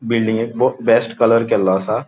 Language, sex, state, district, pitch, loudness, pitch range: Konkani, male, Goa, North and South Goa, 115 Hz, -16 LUFS, 110-115 Hz